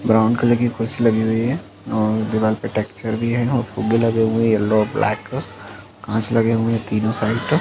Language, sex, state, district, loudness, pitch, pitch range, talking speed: Hindi, male, Uttar Pradesh, Muzaffarnagar, -19 LUFS, 110 Hz, 110-115 Hz, 220 wpm